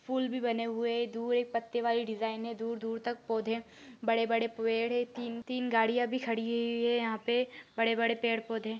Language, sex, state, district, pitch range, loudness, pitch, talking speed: Hindi, female, Maharashtra, Dhule, 230-240 Hz, -32 LUFS, 230 Hz, 210 wpm